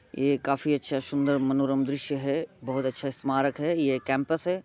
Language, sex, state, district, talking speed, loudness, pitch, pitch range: Hindi, male, Bihar, Muzaffarpur, 180 wpm, -27 LUFS, 140 Hz, 135-145 Hz